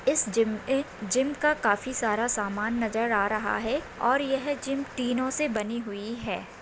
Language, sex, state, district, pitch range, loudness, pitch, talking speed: Hindi, female, Maharashtra, Solapur, 215-270 Hz, -27 LUFS, 235 Hz, 180 wpm